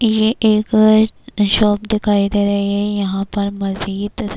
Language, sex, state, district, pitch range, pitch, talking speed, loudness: Urdu, female, Bihar, Kishanganj, 200-215 Hz, 205 Hz, 135 wpm, -16 LUFS